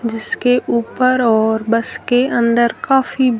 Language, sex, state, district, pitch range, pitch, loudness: Hindi, female, Rajasthan, Jaisalmer, 230-255 Hz, 235 Hz, -15 LUFS